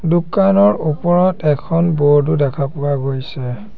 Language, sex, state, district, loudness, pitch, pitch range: Assamese, male, Assam, Sonitpur, -16 LUFS, 155 Hz, 140-175 Hz